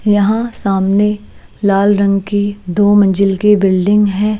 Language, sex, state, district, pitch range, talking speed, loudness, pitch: Hindi, female, Himachal Pradesh, Shimla, 195-210 Hz, 135 wpm, -13 LUFS, 205 Hz